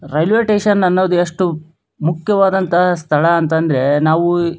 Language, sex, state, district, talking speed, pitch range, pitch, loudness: Kannada, male, Karnataka, Dharwad, 120 wpm, 160-185 Hz, 170 Hz, -15 LUFS